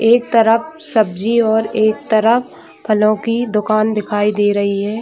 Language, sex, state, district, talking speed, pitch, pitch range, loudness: Hindi, female, Chhattisgarh, Bilaspur, 170 wpm, 220 Hz, 210-230 Hz, -15 LUFS